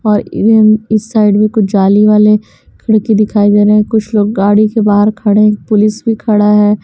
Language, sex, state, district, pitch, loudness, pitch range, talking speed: Hindi, female, Bihar, West Champaran, 210 Hz, -10 LUFS, 210-215 Hz, 185 wpm